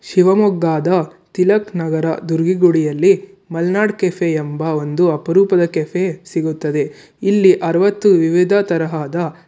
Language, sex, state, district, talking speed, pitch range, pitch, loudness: Kannada, male, Karnataka, Shimoga, 100 wpm, 160-190 Hz, 175 Hz, -16 LUFS